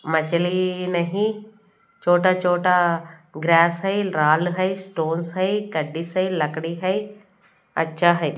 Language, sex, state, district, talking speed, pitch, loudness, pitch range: Hindi, female, Punjab, Kapurthala, 115 wpm, 180 Hz, -21 LUFS, 165-195 Hz